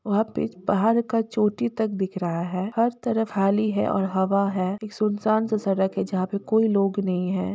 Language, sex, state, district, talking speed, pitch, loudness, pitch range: Hindi, female, Jharkhand, Jamtara, 215 wpm, 200 Hz, -24 LUFS, 190-220 Hz